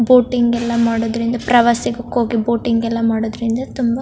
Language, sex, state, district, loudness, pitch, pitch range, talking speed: Kannada, female, Karnataka, Chamarajanagar, -17 LUFS, 235 Hz, 230-240 Hz, 150 wpm